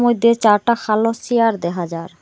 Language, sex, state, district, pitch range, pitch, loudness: Bengali, female, Assam, Hailakandi, 175-235 Hz, 225 Hz, -17 LUFS